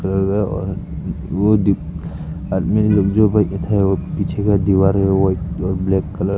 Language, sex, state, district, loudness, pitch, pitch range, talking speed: Hindi, male, Arunachal Pradesh, Papum Pare, -18 LUFS, 95 Hz, 95-100 Hz, 160 wpm